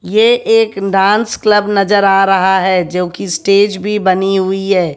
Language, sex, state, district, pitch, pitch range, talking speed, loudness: Hindi, female, Haryana, Jhajjar, 195 Hz, 190-210 Hz, 180 wpm, -12 LUFS